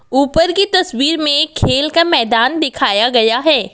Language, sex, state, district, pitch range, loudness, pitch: Hindi, female, Assam, Kamrup Metropolitan, 255-330 Hz, -13 LUFS, 305 Hz